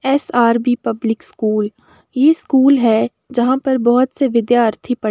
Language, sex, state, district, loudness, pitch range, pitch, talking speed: Hindi, female, Uttar Pradesh, Jalaun, -15 LUFS, 230-265 Hz, 245 Hz, 150 wpm